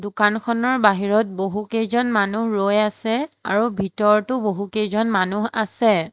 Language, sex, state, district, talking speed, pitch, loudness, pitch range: Assamese, female, Assam, Hailakandi, 105 wpm, 215 Hz, -20 LUFS, 205-225 Hz